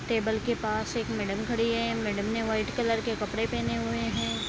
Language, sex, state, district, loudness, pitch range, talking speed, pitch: Hindi, female, Bihar, Araria, -29 LUFS, 205-230 Hz, 215 wpm, 220 Hz